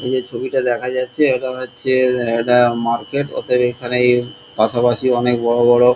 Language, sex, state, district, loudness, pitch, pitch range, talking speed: Bengali, male, West Bengal, Kolkata, -17 LUFS, 125 Hz, 120-130 Hz, 170 wpm